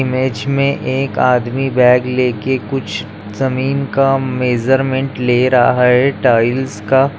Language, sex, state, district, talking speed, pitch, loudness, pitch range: Hindi, male, Maharashtra, Chandrapur, 125 wpm, 130 Hz, -14 LUFS, 125-135 Hz